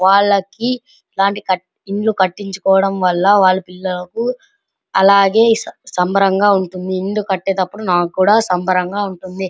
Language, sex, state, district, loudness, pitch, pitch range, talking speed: Telugu, male, Andhra Pradesh, Anantapur, -16 LUFS, 195 Hz, 185-205 Hz, 100 wpm